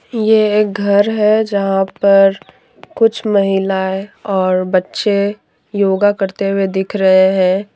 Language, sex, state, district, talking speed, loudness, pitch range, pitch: Hindi, female, Jharkhand, Deoghar, 125 wpm, -14 LUFS, 190-205 Hz, 195 Hz